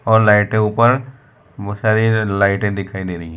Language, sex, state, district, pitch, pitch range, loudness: Hindi, male, Gujarat, Valsad, 105 Hz, 100-110 Hz, -16 LUFS